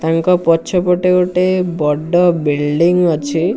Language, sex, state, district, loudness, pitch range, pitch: Odia, male, Odisha, Nuapada, -14 LUFS, 160-180 Hz, 175 Hz